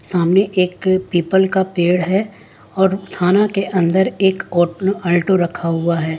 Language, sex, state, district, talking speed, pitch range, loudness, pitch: Hindi, female, Jharkhand, Ranchi, 155 wpm, 175-190 Hz, -16 LUFS, 185 Hz